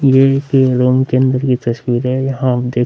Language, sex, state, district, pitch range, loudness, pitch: Hindi, male, Bihar, Vaishali, 125-135 Hz, -14 LUFS, 130 Hz